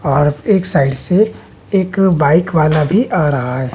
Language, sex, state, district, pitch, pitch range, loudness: Hindi, male, Bihar, West Champaran, 155 Hz, 145-190 Hz, -14 LUFS